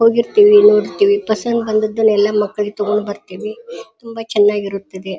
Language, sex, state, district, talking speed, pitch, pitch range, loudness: Kannada, female, Karnataka, Dharwad, 125 wpm, 215 Hz, 205-235 Hz, -14 LUFS